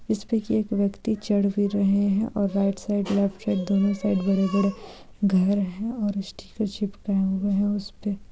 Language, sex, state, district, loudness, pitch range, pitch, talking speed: Hindi, female, Bihar, Saran, -25 LUFS, 195-205 Hz, 200 Hz, 175 wpm